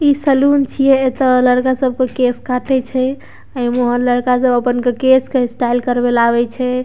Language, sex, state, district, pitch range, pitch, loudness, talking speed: Maithili, female, Bihar, Darbhanga, 245-260 Hz, 250 Hz, -14 LUFS, 210 wpm